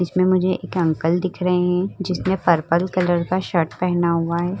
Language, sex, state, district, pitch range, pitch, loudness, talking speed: Hindi, female, Uttar Pradesh, Muzaffarnagar, 170-185 Hz, 180 Hz, -20 LUFS, 180 wpm